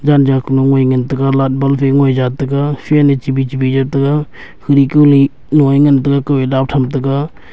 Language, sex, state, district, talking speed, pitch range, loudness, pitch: Wancho, male, Arunachal Pradesh, Longding, 190 wpm, 135-140 Hz, -12 LUFS, 135 Hz